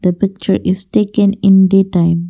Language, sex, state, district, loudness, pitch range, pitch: English, female, Assam, Kamrup Metropolitan, -13 LUFS, 180-200 Hz, 195 Hz